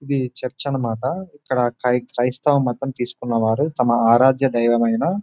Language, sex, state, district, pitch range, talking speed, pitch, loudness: Telugu, male, Telangana, Nalgonda, 120-135 Hz, 150 wpm, 125 Hz, -20 LUFS